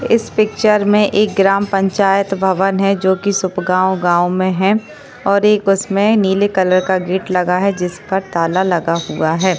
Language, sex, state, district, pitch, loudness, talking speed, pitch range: Hindi, female, Maharashtra, Chandrapur, 195 Hz, -15 LUFS, 175 wpm, 185-200 Hz